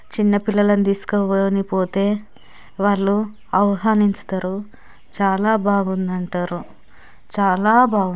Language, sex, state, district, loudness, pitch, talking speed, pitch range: Telugu, female, Andhra Pradesh, Chittoor, -19 LUFS, 200 Hz, 90 wpm, 190-210 Hz